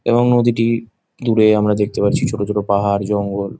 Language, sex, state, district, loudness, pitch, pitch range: Bengali, male, West Bengal, Jhargram, -17 LUFS, 105 Hz, 100-120 Hz